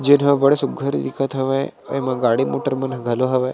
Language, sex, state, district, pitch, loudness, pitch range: Chhattisgarhi, male, Chhattisgarh, Sarguja, 135 Hz, -19 LUFS, 130-140 Hz